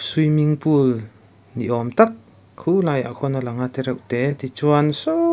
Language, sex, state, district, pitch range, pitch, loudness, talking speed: Mizo, male, Mizoram, Aizawl, 120-150 Hz, 135 Hz, -20 LUFS, 160 wpm